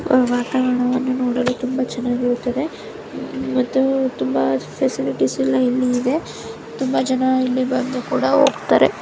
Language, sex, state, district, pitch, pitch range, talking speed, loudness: Kannada, female, Karnataka, Bijapur, 255 Hz, 245-260 Hz, 95 wpm, -19 LUFS